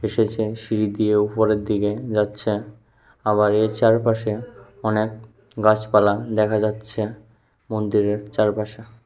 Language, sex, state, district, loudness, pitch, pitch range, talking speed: Bengali, male, Tripura, West Tripura, -21 LUFS, 110 Hz, 105-110 Hz, 100 wpm